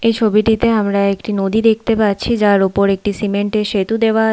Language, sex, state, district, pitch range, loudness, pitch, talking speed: Bengali, female, West Bengal, Paschim Medinipur, 200-225 Hz, -15 LUFS, 210 Hz, 195 wpm